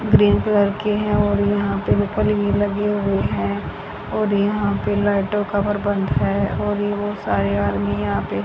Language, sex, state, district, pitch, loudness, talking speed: Hindi, female, Haryana, Rohtak, 195 Hz, -20 LUFS, 175 wpm